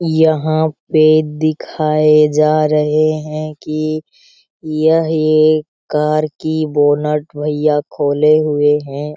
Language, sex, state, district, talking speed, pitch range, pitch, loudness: Hindi, male, Bihar, Araria, 105 wpm, 150-155 Hz, 155 Hz, -14 LUFS